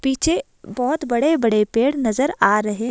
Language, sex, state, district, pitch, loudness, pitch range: Hindi, female, Himachal Pradesh, Shimla, 245 Hz, -19 LUFS, 225-285 Hz